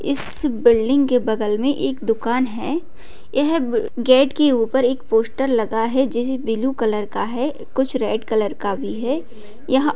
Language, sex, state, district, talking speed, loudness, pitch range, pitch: Hindi, female, Bihar, Bhagalpur, 170 wpm, -20 LUFS, 225-270 Hz, 250 Hz